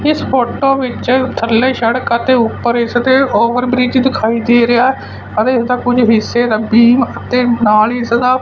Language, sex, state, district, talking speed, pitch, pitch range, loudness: Punjabi, male, Punjab, Fazilka, 185 wpm, 245 Hz, 235-255 Hz, -12 LUFS